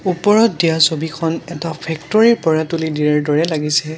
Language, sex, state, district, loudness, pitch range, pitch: Assamese, male, Assam, Sonitpur, -16 LUFS, 155-170 Hz, 160 Hz